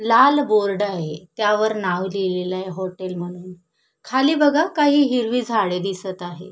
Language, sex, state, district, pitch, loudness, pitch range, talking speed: Marathi, female, Maharashtra, Solapur, 195 Hz, -20 LUFS, 185-240 Hz, 145 wpm